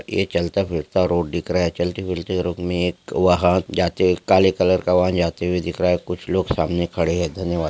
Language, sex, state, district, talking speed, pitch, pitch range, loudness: Hindi, male, Maharashtra, Solapur, 235 wpm, 90 Hz, 85-90 Hz, -20 LUFS